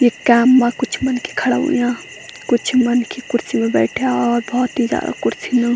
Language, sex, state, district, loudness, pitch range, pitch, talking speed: Garhwali, female, Uttarakhand, Tehri Garhwal, -17 LUFS, 235-255 Hz, 245 Hz, 185 wpm